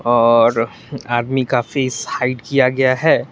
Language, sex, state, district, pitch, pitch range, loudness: Hindi, male, Tripura, West Tripura, 125 Hz, 120-130 Hz, -16 LUFS